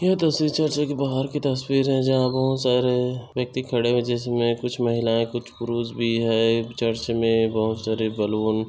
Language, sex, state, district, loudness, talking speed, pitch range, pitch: Hindi, male, Chhattisgarh, Bastar, -23 LUFS, 200 wpm, 115-130 Hz, 120 Hz